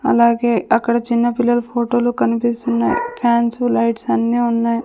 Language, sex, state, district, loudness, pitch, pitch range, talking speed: Telugu, female, Andhra Pradesh, Sri Satya Sai, -17 LUFS, 235 Hz, 235-240 Hz, 125 wpm